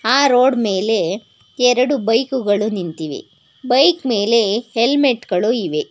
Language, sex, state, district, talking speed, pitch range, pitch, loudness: Kannada, female, Karnataka, Bangalore, 130 wpm, 210-260 Hz, 235 Hz, -16 LUFS